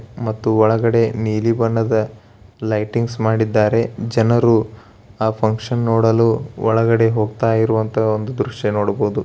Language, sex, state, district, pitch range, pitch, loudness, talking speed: Kannada, male, Karnataka, Bellary, 110-115 Hz, 110 Hz, -17 LUFS, 110 wpm